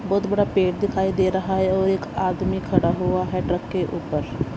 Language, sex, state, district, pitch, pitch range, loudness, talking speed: Hindi, female, Punjab, Kapurthala, 190 Hz, 190-200 Hz, -22 LUFS, 210 wpm